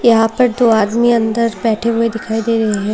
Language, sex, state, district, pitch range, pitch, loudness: Hindi, female, Tripura, Unakoti, 220-235 Hz, 225 Hz, -14 LUFS